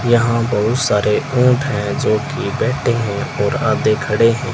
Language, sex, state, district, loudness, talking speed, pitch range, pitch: Hindi, male, Rajasthan, Bikaner, -16 LUFS, 170 wpm, 105-130 Hz, 120 Hz